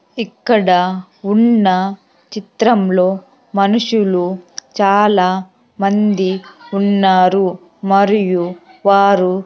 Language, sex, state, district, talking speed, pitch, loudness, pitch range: Telugu, female, Andhra Pradesh, Sri Satya Sai, 55 wpm, 195 Hz, -14 LUFS, 185-210 Hz